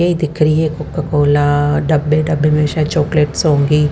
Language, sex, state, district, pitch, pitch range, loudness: Hindi, female, Haryana, Rohtak, 150 Hz, 150-155 Hz, -14 LUFS